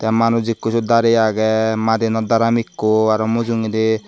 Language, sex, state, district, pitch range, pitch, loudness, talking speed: Chakma, male, Tripura, Dhalai, 110-115 Hz, 110 Hz, -17 LUFS, 160 wpm